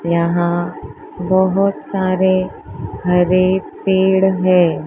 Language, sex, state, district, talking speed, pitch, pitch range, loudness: Hindi, female, Maharashtra, Mumbai Suburban, 75 wpm, 185 Hz, 175-190 Hz, -16 LUFS